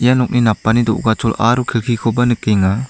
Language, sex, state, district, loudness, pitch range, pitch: Garo, male, Meghalaya, South Garo Hills, -15 LUFS, 110-125 Hz, 115 Hz